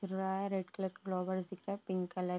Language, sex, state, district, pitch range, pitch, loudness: Hindi, female, Uttar Pradesh, Deoria, 185-195 Hz, 190 Hz, -39 LUFS